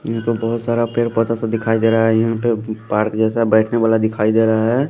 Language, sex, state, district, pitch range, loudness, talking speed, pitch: Hindi, male, Punjab, Pathankot, 110-115 Hz, -17 LUFS, 255 wpm, 115 Hz